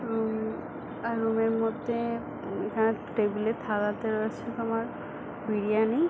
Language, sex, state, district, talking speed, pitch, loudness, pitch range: Bengali, female, West Bengal, Dakshin Dinajpur, 165 wpm, 225 Hz, -30 LUFS, 220-230 Hz